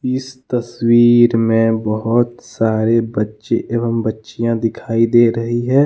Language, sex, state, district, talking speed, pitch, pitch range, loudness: Hindi, male, Jharkhand, Deoghar, 125 wpm, 115 Hz, 115-120 Hz, -16 LUFS